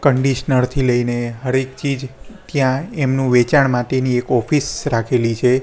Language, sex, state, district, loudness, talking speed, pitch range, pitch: Gujarati, male, Gujarat, Gandhinagar, -18 LUFS, 150 wpm, 125-135 Hz, 130 Hz